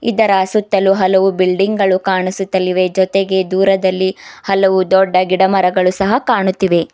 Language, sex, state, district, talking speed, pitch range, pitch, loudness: Kannada, female, Karnataka, Bidar, 120 wpm, 185-195 Hz, 190 Hz, -14 LUFS